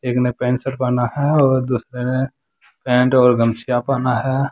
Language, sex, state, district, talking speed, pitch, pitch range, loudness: Hindi, male, Jharkhand, Deoghar, 185 wpm, 125 Hz, 125-135 Hz, -18 LUFS